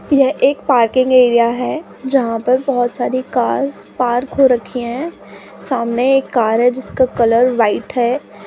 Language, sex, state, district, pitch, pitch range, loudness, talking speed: Hindi, female, Uttar Pradesh, Budaun, 250 Hz, 240-270 Hz, -15 LUFS, 155 wpm